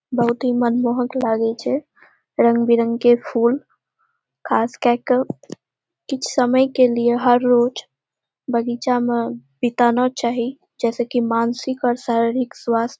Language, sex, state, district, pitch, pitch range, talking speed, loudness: Maithili, female, Bihar, Saharsa, 240 Hz, 235-255 Hz, 135 wpm, -19 LUFS